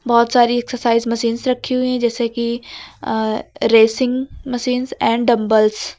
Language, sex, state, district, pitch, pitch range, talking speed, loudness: Hindi, female, Uttar Pradesh, Lucknow, 235 Hz, 230-250 Hz, 150 wpm, -17 LUFS